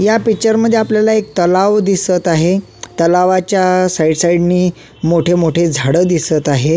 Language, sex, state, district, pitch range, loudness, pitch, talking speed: Marathi, male, Maharashtra, Solapur, 170-195 Hz, -13 LUFS, 180 Hz, 150 wpm